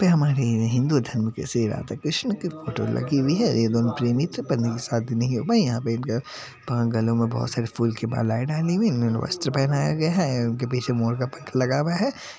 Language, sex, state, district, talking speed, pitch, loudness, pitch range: Hindi, male, Bihar, Madhepura, 220 wpm, 125 Hz, -24 LUFS, 115-150 Hz